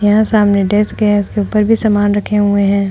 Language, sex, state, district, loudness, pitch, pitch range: Hindi, female, Uttar Pradesh, Hamirpur, -13 LUFS, 205 Hz, 205-210 Hz